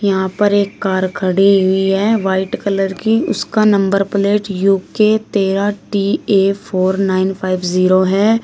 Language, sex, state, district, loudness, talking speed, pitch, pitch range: Hindi, female, Uttar Pradesh, Shamli, -15 LUFS, 165 wpm, 195 Hz, 190-205 Hz